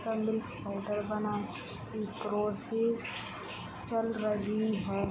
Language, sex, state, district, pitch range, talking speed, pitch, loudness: Hindi, female, Jharkhand, Sahebganj, 210-220 Hz, 95 wpm, 215 Hz, -34 LUFS